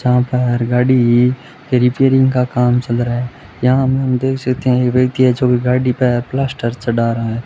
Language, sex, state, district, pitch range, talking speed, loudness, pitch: Hindi, male, Rajasthan, Bikaner, 120-130 Hz, 200 wpm, -15 LUFS, 125 Hz